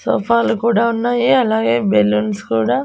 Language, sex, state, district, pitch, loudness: Telugu, female, Andhra Pradesh, Annamaya, 220 Hz, -16 LUFS